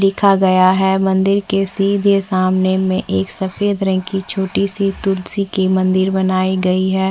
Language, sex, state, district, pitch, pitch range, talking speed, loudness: Hindi, female, Chhattisgarh, Bastar, 190 Hz, 185-195 Hz, 170 wpm, -16 LUFS